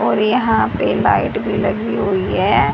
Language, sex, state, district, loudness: Hindi, female, Haryana, Charkhi Dadri, -17 LUFS